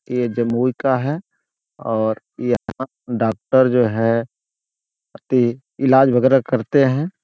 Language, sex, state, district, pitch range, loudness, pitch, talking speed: Hindi, male, Bihar, Jamui, 115-130 Hz, -18 LUFS, 125 Hz, 110 wpm